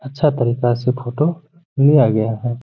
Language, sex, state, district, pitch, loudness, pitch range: Hindi, male, Bihar, Gaya, 130 Hz, -17 LUFS, 120-150 Hz